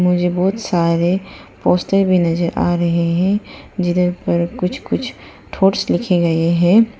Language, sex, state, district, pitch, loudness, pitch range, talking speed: Hindi, female, Arunachal Pradesh, Papum Pare, 180 Hz, -17 LUFS, 170-190 Hz, 145 wpm